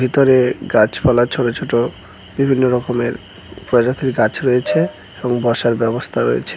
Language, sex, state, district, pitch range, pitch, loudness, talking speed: Bengali, male, West Bengal, Cooch Behar, 115-130 Hz, 120 Hz, -16 LUFS, 120 wpm